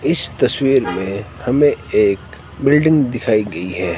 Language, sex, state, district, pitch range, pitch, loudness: Hindi, male, Himachal Pradesh, Shimla, 100-145 Hz, 125 Hz, -16 LUFS